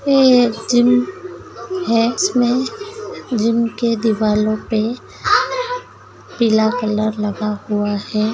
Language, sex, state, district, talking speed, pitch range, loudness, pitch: Hindi, female, Bihar, Begusarai, 95 wpm, 215-255 Hz, -17 LUFS, 230 Hz